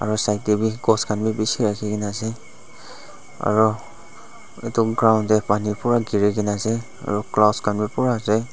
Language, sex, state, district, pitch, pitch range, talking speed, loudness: Nagamese, male, Nagaland, Dimapur, 110 Hz, 105-115 Hz, 170 wpm, -21 LUFS